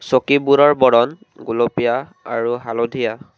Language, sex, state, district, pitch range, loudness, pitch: Assamese, male, Assam, Kamrup Metropolitan, 115-140 Hz, -17 LUFS, 120 Hz